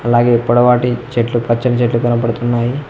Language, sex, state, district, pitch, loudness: Telugu, male, Telangana, Mahabubabad, 120 Hz, -14 LUFS